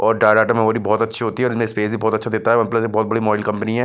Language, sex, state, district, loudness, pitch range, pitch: Hindi, male, Chandigarh, Chandigarh, -18 LUFS, 110-115 Hz, 110 Hz